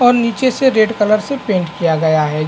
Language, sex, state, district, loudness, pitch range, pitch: Hindi, male, Chhattisgarh, Bastar, -15 LUFS, 165-245 Hz, 215 Hz